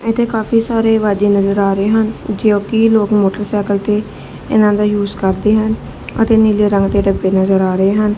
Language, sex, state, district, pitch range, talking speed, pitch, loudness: Punjabi, female, Punjab, Kapurthala, 200-220 Hz, 190 wpm, 210 Hz, -14 LUFS